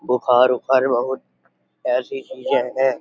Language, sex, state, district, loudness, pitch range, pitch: Hindi, male, Uttar Pradesh, Jyotiba Phule Nagar, -19 LUFS, 125-160 Hz, 130 Hz